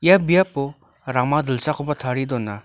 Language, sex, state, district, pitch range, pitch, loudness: Garo, male, Meghalaya, North Garo Hills, 125-150 Hz, 140 Hz, -21 LUFS